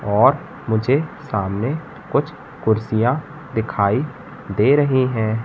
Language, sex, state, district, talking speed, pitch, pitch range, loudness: Hindi, male, Madhya Pradesh, Katni, 100 wpm, 120 Hz, 110-140 Hz, -20 LUFS